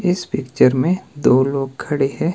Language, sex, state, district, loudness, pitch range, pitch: Hindi, male, Himachal Pradesh, Shimla, -18 LUFS, 135-180 Hz, 150 Hz